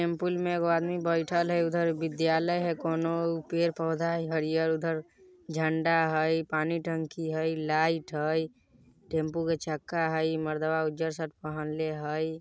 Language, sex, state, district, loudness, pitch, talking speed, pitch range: Bajjika, male, Bihar, Vaishali, -29 LUFS, 160 Hz, 150 wpm, 160-170 Hz